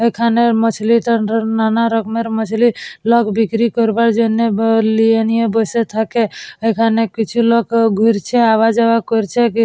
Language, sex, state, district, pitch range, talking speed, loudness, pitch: Bengali, female, West Bengal, Purulia, 225-230 Hz, 145 wpm, -15 LUFS, 225 Hz